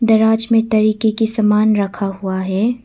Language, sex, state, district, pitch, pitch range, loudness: Hindi, female, Arunachal Pradesh, Papum Pare, 215 Hz, 200-225 Hz, -15 LUFS